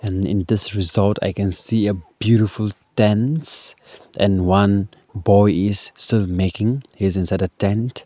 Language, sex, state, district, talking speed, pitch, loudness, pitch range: English, male, Arunachal Pradesh, Lower Dibang Valley, 155 wpm, 100 Hz, -19 LUFS, 95-110 Hz